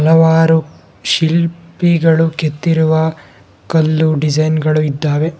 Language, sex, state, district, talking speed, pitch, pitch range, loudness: Kannada, male, Karnataka, Bangalore, 80 wpm, 160 Hz, 155-165 Hz, -14 LUFS